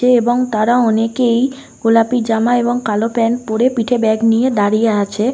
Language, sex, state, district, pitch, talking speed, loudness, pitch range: Bengali, female, West Bengal, North 24 Parganas, 230 Hz, 170 wpm, -15 LUFS, 225-245 Hz